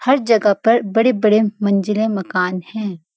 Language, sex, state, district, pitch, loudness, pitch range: Hindi, female, Uttarakhand, Uttarkashi, 210 Hz, -17 LUFS, 195-225 Hz